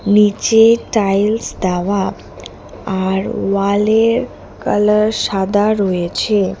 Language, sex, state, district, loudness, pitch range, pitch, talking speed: Bengali, female, West Bengal, Alipurduar, -15 LUFS, 190-215 Hz, 200 Hz, 75 wpm